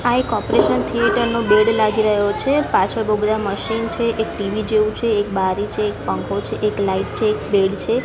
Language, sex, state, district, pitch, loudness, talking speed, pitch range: Gujarati, female, Gujarat, Gandhinagar, 215 Hz, -19 LUFS, 225 wpm, 205-230 Hz